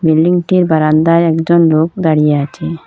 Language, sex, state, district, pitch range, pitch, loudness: Bengali, female, Assam, Hailakandi, 155-170 Hz, 160 Hz, -12 LUFS